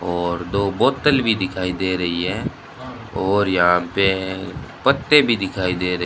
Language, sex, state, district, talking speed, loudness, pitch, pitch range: Hindi, male, Rajasthan, Bikaner, 170 wpm, -19 LUFS, 95 Hz, 90-115 Hz